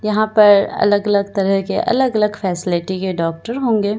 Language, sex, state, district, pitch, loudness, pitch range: Hindi, female, Bihar, Katihar, 205 Hz, -16 LUFS, 190-215 Hz